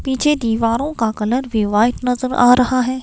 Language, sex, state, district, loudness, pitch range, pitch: Hindi, female, Himachal Pradesh, Shimla, -16 LUFS, 230-260 Hz, 250 Hz